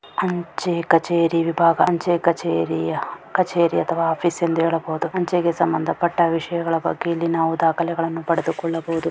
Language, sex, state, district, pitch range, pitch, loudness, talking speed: Kannada, female, Karnataka, Dharwad, 165-170 Hz, 170 Hz, -21 LUFS, 125 wpm